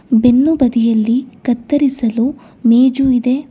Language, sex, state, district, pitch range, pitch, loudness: Kannada, female, Karnataka, Bangalore, 235-270 Hz, 250 Hz, -14 LUFS